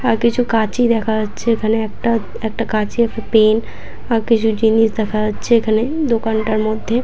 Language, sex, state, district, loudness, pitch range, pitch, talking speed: Bengali, female, West Bengal, Purulia, -17 LUFS, 220-230 Hz, 225 Hz, 160 wpm